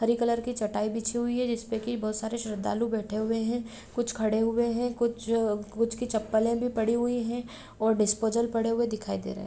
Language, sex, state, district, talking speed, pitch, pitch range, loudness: Hindi, female, Chhattisgarh, Rajnandgaon, 220 wpm, 230 Hz, 220-235 Hz, -29 LUFS